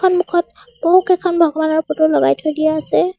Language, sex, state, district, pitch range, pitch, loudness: Assamese, female, Assam, Sonitpur, 310-360 Hz, 335 Hz, -16 LUFS